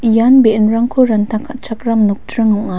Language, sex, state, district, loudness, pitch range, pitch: Garo, female, Meghalaya, West Garo Hills, -13 LUFS, 215-240 Hz, 225 Hz